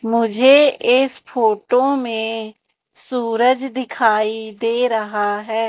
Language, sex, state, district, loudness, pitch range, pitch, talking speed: Hindi, female, Madhya Pradesh, Umaria, -17 LUFS, 220-255 Hz, 230 Hz, 95 wpm